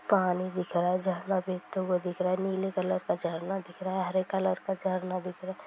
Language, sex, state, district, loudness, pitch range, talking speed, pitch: Hindi, female, Bihar, Sitamarhi, -31 LUFS, 180-190 Hz, 255 wpm, 185 Hz